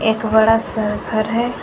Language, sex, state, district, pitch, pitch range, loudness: Hindi, female, Jharkhand, Garhwa, 220 Hz, 220-225 Hz, -17 LUFS